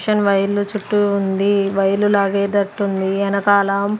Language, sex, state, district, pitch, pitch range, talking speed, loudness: Telugu, female, Andhra Pradesh, Sri Satya Sai, 200 Hz, 195-205 Hz, 150 wpm, -17 LUFS